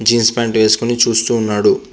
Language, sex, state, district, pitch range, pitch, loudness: Telugu, male, Andhra Pradesh, Visakhapatnam, 110-120 Hz, 115 Hz, -14 LUFS